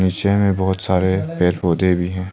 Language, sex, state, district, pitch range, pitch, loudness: Hindi, male, Arunachal Pradesh, Longding, 90-95 Hz, 95 Hz, -17 LUFS